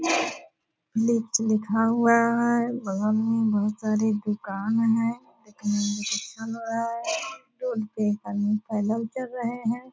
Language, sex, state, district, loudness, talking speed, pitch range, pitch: Hindi, female, Bihar, Purnia, -26 LUFS, 150 wpm, 210-235 Hz, 225 Hz